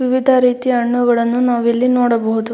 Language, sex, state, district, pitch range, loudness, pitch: Kannada, female, Karnataka, Belgaum, 235-250 Hz, -15 LUFS, 245 Hz